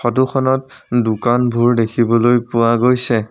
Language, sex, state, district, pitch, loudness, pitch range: Assamese, male, Assam, Sonitpur, 120 Hz, -15 LUFS, 115-125 Hz